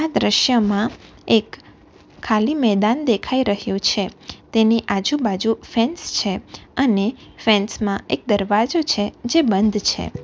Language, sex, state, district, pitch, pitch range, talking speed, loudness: Gujarati, female, Gujarat, Valsad, 220 Hz, 205-245 Hz, 115 wpm, -19 LUFS